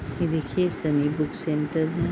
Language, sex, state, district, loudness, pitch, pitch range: Hindi, female, Uttar Pradesh, Deoria, -26 LUFS, 155 Hz, 150-170 Hz